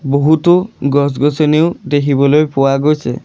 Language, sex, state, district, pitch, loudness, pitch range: Assamese, male, Assam, Sonitpur, 145 Hz, -13 LUFS, 140-155 Hz